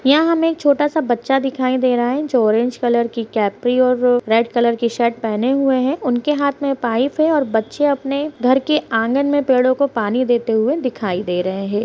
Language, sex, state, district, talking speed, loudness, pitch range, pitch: Hindi, female, Bihar, Saharsa, 220 wpm, -17 LUFS, 235-280 Hz, 255 Hz